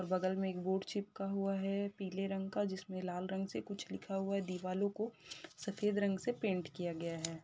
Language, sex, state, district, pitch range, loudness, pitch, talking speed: Hindi, female, Uttar Pradesh, Gorakhpur, 185-200 Hz, -39 LUFS, 195 Hz, 225 wpm